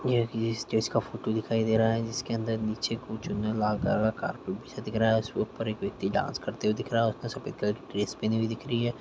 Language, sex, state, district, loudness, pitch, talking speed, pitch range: Hindi, male, Chhattisgarh, Korba, -30 LUFS, 115 Hz, 280 wpm, 110-115 Hz